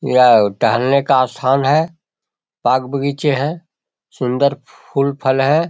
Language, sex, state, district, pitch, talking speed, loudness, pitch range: Hindi, male, Bihar, Jahanabad, 140 Hz, 115 wpm, -16 LUFS, 130-145 Hz